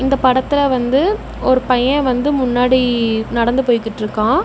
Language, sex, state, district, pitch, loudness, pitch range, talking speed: Tamil, female, Tamil Nadu, Namakkal, 255 Hz, -15 LUFS, 240-270 Hz, 120 wpm